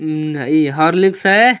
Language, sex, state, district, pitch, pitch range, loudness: Hindi, male, Uttar Pradesh, Ghazipur, 155 Hz, 155-195 Hz, -14 LUFS